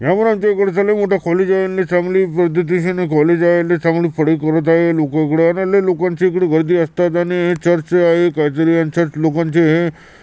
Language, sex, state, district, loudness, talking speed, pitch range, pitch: Marathi, male, Maharashtra, Chandrapur, -15 LUFS, 175 wpm, 165-180 Hz, 175 Hz